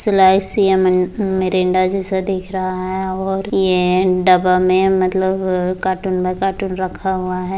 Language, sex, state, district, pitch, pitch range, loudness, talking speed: Hindi, female, Bihar, Muzaffarpur, 185 Hz, 185-190 Hz, -16 LUFS, 150 wpm